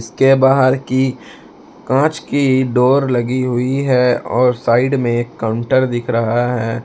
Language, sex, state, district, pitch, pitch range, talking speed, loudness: Hindi, male, Jharkhand, Palamu, 125 Hz, 120-130 Hz, 140 wpm, -15 LUFS